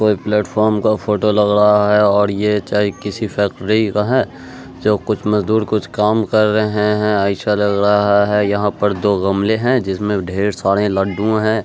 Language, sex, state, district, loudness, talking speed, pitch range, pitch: Angika, male, Bihar, Araria, -16 LUFS, 185 wpm, 100-110 Hz, 105 Hz